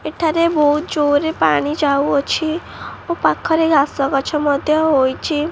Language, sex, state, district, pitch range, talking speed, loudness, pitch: Odia, female, Odisha, Khordha, 285-320 Hz, 120 wpm, -17 LUFS, 300 Hz